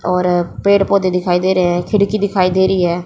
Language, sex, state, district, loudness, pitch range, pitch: Hindi, female, Haryana, Jhajjar, -15 LUFS, 180-200 Hz, 185 Hz